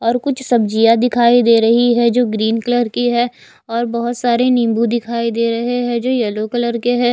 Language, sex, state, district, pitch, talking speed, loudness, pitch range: Hindi, female, Chhattisgarh, Raipur, 235 Hz, 210 wpm, -15 LUFS, 230-245 Hz